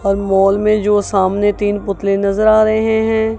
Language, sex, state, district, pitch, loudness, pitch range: Hindi, female, Punjab, Kapurthala, 205 Hz, -14 LUFS, 200-215 Hz